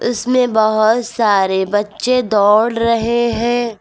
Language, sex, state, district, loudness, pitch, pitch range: Hindi, female, Uttar Pradesh, Lucknow, -15 LUFS, 230 Hz, 210-240 Hz